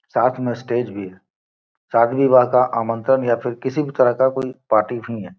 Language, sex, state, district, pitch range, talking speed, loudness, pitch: Hindi, male, Bihar, Gopalganj, 115-130 Hz, 210 wpm, -19 LUFS, 120 Hz